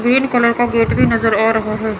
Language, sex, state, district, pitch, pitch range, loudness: Hindi, female, Chandigarh, Chandigarh, 230 Hz, 220-240 Hz, -15 LUFS